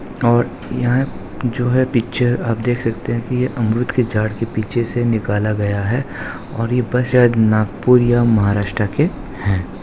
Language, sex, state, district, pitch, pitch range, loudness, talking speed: Hindi, male, Maharashtra, Sindhudurg, 120 Hz, 110-125 Hz, -18 LUFS, 175 wpm